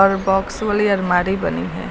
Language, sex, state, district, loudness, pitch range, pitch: Hindi, female, Uttar Pradesh, Lucknow, -19 LUFS, 190-200 Hz, 195 Hz